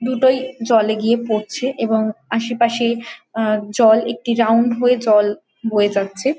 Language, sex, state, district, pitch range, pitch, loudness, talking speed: Bengali, female, West Bengal, Jhargram, 215-240 Hz, 230 Hz, -17 LUFS, 150 wpm